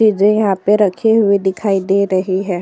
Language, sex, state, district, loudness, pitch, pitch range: Hindi, female, Uttar Pradesh, Jyotiba Phule Nagar, -14 LUFS, 200 Hz, 190-210 Hz